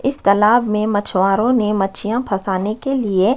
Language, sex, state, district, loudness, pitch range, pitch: Hindi, female, Chhattisgarh, Sukma, -17 LUFS, 195-240 Hz, 210 Hz